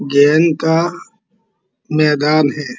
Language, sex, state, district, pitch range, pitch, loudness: Hindi, male, Uttar Pradesh, Muzaffarnagar, 150-180 Hz, 155 Hz, -14 LUFS